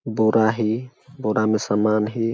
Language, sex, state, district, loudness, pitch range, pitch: Awadhi, male, Chhattisgarh, Balrampur, -21 LUFS, 110-115 Hz, 110 Hz